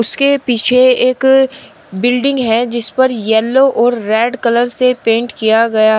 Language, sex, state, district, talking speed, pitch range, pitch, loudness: Hindi, female, Uttar Pradesh, Shamli, 150 wpm, 225-255 Hz, 240 Hz, -12 LUFS